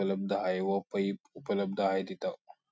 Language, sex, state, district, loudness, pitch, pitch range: Marathi, male, Maharashtra, Sindhudurg, -33 LUFS, 95 Hz, 95-100 Hz